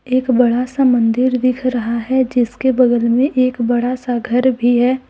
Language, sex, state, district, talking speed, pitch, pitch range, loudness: Hindi, female, Jharkhand, Deoghar, 190 wpm, 250 Hz, 240-255 Hz, -15 LUFS